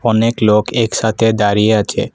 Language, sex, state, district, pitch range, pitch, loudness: Bengali, male, Assam, Kamrup Metropolitan, 105-115 Hz, 110 Hz, -14 LUFS